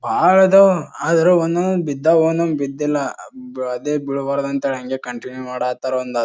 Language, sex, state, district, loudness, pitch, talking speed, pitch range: Kannada, male, Karnataka, Bijapur, -18 LUFS, 140 Hz, 135 wpm, 130-165 Hz